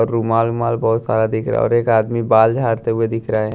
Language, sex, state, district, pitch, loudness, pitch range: Hindi, male, Maharashtra, Washim, 115 Hz, -17 LUFS, 110-115 Hz